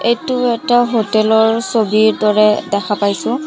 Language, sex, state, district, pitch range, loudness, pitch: Assamese, female, Assam, Sonitpur, 215-240 Hz, -14 LUFS, 220 Hz